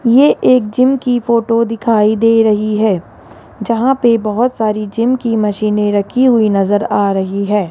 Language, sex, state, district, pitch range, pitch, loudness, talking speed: Hindi, female, Rajasthan, Jaipur, 210-235 Hz, 220 Hz, -13 LUFS, 170 wpm